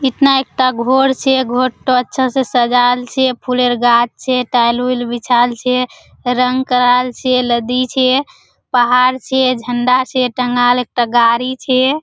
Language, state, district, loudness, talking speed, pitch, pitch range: Surjapuri, Bihar, Kishanganj, -14 LUFS, 140 wpm, 250 Hz, 245-260 Hz